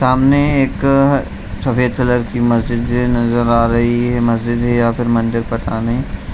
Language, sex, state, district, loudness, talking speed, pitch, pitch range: Hindi, male, Bihar, Jamui, -15 LUFS, 160 wpm, 120 Hz, 115-125 Hz